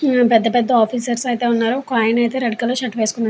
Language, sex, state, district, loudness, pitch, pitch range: Telugu, female, Andhra Pradesh, Chittoor, -17 LUFS, 240 Hz, 230-245 Hz